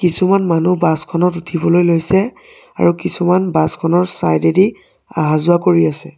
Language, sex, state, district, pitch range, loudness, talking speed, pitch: Assamese, male, Assam, Sonitpur, 165-180 Hz, -14 LUFS, 145 wpm, 175 Hz